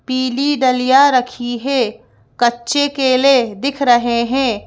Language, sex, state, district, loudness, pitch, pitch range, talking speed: Hindi, female, Madhya Pradesh, Bhopal, -15 LUFS, 255 Hz, 240-275 Hz, 115 wpm